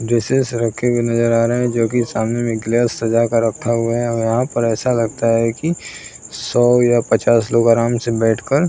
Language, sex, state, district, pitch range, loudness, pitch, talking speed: Hindi, male, Uttar Pradesh, Muzaffarnagar, 115-120 Hz, -17 LUFS, 115 Hz, 235 wpm